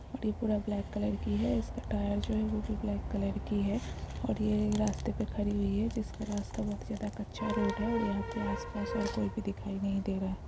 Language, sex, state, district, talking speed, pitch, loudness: Hindi, female, Bihar, Darbhanga, 240 wpm, 190 Hz, -34 LUFS